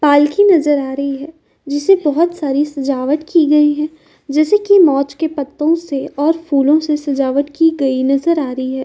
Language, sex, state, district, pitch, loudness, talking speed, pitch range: Hindi, female, Uttar Pradesh, Jyotiba Phule Nagar, 295 Hz, -14 LUFS, 190 wpm, 280-320 Hz